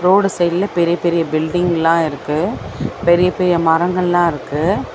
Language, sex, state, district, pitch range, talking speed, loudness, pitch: Tamil, female, Tamil Nadu, Chennai, 165-180 Hz, 120 wpm, -16 LUFS, 175 Hz